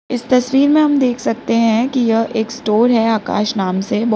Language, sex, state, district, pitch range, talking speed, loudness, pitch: Hindi, female, Uttar Pradesh, Lalitpur, 220-250 Hz, 230 wpm, -15 LUFS, 230 Hz